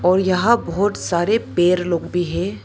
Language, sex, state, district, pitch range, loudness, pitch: Hindi, female, Arunachal Pradesh, Lower Dibang Valley, 170-195 Hz, -19 LUFS, 180 Hz